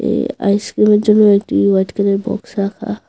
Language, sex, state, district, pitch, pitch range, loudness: Bengali, female, Tripura, Unakoti, 200 Hz, 195-210 Hz, -14 LUFS